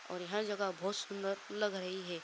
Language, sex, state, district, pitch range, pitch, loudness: Hindi, male, Bihar, Darbhanga, 185-205 Hz, 195 Hz, -38 LUFS